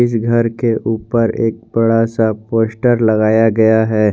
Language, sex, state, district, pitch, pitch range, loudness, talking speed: Hindi, male, Jharkhand, Garhwa, 115 Hz, 110-115 Hz, -14 LUFS, 145 wpm